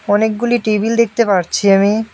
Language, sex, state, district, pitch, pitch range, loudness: Bengali, male, West Bengal, Alipurduar, 215 Hz, 205-235 Hz, -14 LUFS